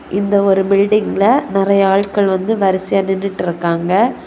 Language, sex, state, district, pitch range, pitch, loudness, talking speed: Tamil, female, Tamil Nadu, Kanyakumari, 190-200 Hz, 195 Hz, -14 LUFS, 115 wpm